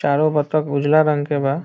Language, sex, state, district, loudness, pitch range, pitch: Bhojpuri, male, Bihar, Saran, -18 LUFS, 145-155 Hz, 150 Hz